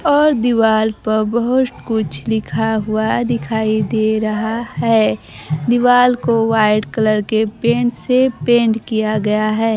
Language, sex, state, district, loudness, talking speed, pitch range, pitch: Hindi, female, Bihar, Kaimur, -16 LUFS, 135 wpm, 215-235 Hz, 220 Hz